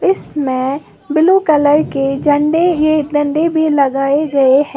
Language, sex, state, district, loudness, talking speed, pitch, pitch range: Hindi, female, Uttar Pradesh, Lalitpur, -13 LUFS, 140 wpm, 295 Hz, 275-310 Hz